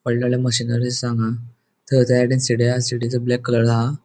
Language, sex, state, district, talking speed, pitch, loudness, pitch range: Konkani, male, Goa, North and South Goa, 135 wpm, 120 Hz, -19 LUFS, 120-125 Hz